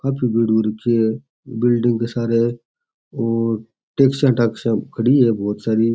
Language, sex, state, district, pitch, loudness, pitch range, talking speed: Rajasthani, male, Rajasthan, Churu, 115 Hz, -18 LUFS, 115-125 Hz, 160 wpm